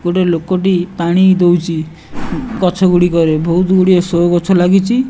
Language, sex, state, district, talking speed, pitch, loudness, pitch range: Odia, male, Odisha, Nuapada, 130 wpm, 180 Hz, -12 LUFS, 170-185 Hz